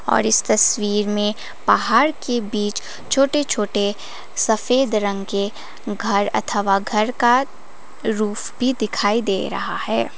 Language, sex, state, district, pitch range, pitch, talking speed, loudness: Hindi, female, Sikkim, Gangtok, 200-240 Hz, 210 Hz, 130 wpm, -20 LUFS